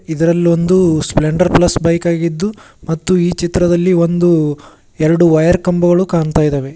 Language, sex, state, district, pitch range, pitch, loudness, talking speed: Kannada, male, Karnataka, Koppal, 160-175 Hz, 170 Hz, -13 LUFS, 125 wpm